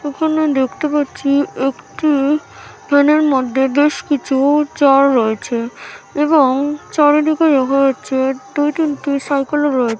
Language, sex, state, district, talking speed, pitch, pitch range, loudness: Bengali, female, West Bengal, Malda, 125 wpm, 285 Hz, 265-295 Hz, -15 LUFS